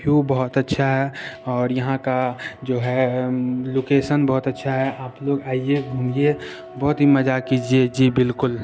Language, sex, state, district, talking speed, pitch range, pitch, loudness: Hindi, male, Bihar, Saharsa, 165 wpm, 130-135 Hz, 130 Hz, -21 LUFS